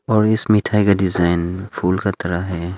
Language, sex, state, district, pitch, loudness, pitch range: Hindi, male, Arunachal Pradesh, Longding, 95 Hz, -18 LUFS, 90-105 Hz